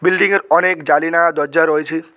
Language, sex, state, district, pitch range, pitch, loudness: Bengali, male, West Bengal, Cooch Behar, 155-180 Hz, 165 Hz, -14 LUFS